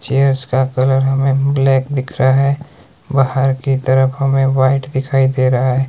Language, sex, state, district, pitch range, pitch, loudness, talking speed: Hindi, male, Himachal Pradesh, Shimla, 130-135 Hz, 135 Hz, -15 LUFS, 175 wpm